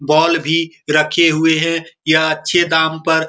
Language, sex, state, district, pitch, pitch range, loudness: Hindi, male, Bihar, Supaul, 160 Hz, 155-165 Hz, -14 LUFS